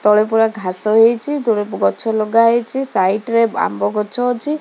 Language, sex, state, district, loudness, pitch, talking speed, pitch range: Odia, female, Odisha, Khordha, -16 LUFS, 225 Hz, 170 wpm, 210-235 Hz